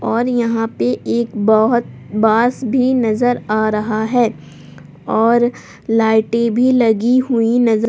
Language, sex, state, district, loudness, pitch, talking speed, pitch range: Hindi, female, Jharkhand, Palamu, -15 LUFS, 225 Hz, 135 wpm, 220-240 Hz